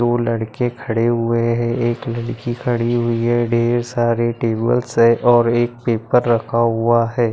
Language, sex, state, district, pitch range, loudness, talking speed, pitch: Hindi, male, Maharashtra, Nagpur, 115-120 Hz, -18 LUFS, 165 wpm, 120 Hz